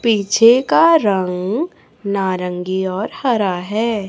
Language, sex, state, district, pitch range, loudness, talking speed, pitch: Hindi, female, Chhattisgarh, Raipur, 185-230 Hz, -16 LUFS, 105 wpm, 205 Hz